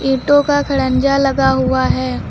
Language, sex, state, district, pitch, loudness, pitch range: Hindi, female, Uttar Pradesh, Lucknow, 270 Hz, -14 LUFS, 220-275 Hz